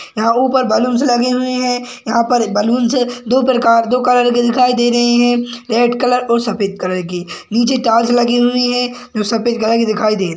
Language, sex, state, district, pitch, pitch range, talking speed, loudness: Hindi, male, Chhattisgarh, Sarguja, 240 Hz, 230-245 Hz, 220 wpm, -14 LUFS